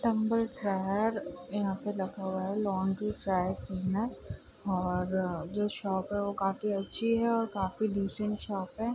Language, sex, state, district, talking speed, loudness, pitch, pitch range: Hindi, female, Bihar, Saharsa, 140 wpm, -32 LUFS, 200 Hz, 190-210 Hz